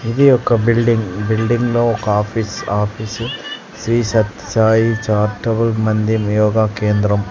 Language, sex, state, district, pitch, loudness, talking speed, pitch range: Telugu, male, Andhra Pradesh, Sri Satya Sai, 110 Hz, -16 LUFS, 130 wpm, 105-115 Hz